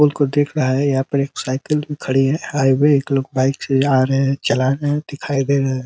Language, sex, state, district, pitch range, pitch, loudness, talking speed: Hindi, male, Uttar Pradesh, Ghazipur, 135-145 Hz, 140 Hz, -18 LUFS, 285 wpm